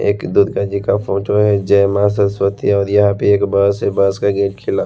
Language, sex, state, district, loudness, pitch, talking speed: Hindi, male, Haryana, Rohtak, -15 LUFS, 100 Hz, 245 wpm